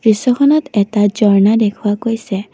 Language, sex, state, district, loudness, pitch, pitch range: Assamese, female, Assam, Kamrup Metropolitan, -14 LUFS, 210 Hz, 205-230 Hz